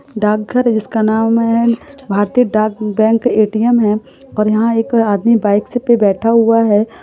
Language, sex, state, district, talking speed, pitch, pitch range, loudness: Hindi, female, Rajasthan, Churu, 160 wpm, 225 Hz, 215-235 Hz, -13 LUFS